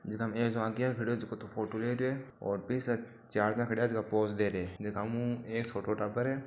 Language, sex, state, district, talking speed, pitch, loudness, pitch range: Marwari, male, Rajasthan, Churu, 250 wpm, 115 Hz, -34 LUFS, 105-120 Hz